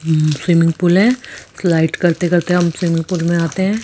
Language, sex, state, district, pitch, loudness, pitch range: Hindi, female, Rajasthan, Jaipur, 170 Hz, -15 LUFS, 165-180 Hz